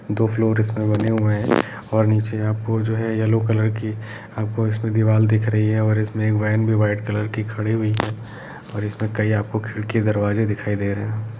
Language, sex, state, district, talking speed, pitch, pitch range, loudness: Hindi, male, Uttar Pradesh, Etah, 220 wpm, 110 Hz, 105-110 Hz, -21 LUFS